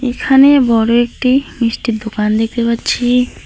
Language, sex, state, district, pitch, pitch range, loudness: Bengali, female, West Bengal, Alipurduar, 240 Hz, 230-255 Hz, -13 LUFS